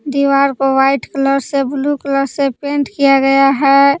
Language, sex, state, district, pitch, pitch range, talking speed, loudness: Hindi, female, Jharkhand, Palamu, 275 Hz, 275-280 Hz, 180 wpm, -13 LUFS